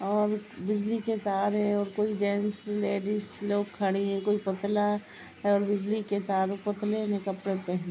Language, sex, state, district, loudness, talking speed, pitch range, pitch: Hindi, female, Uttar Pradesh, Jalaun, -29 LUFS, 180 wpm, 200-210 Hz, 205 Hz